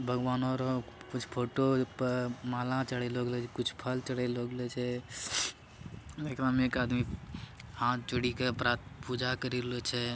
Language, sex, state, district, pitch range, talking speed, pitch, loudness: Angika, male, Bihar, Bhagalpur, 120-130 Hz, 150 wpm, 125 Hz, -34 LUFS